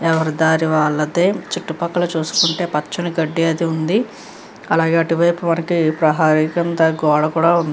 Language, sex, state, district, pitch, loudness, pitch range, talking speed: Telugu, female, Andhra Pradesh, Krishna, 165 Hz, -17 LUFS, 160-170 Hz, 150 wpm